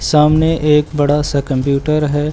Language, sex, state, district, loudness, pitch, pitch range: Hindi, male, Uttar Pradesh, Lucknow, -14 LUFS, 150 Hz, 140-150 Hz